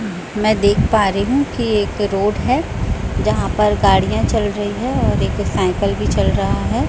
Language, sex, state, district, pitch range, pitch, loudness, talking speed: Hindi, female, Chhattisgarh, Raipur, 200-215 Hz, 205 Hz, -17 LUFS, 190 wpm